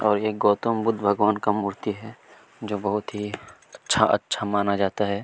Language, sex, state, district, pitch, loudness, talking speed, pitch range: Hindi, male, Chhattisgarh, Kabirdham, 105 Hz, -24 LUFS, 170 wpm, 100-105 Hz